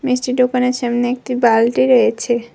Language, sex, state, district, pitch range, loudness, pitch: Bengali, female, Tripura, West Tripura, 235-255 Hz, -15 LUFS, 250 Hz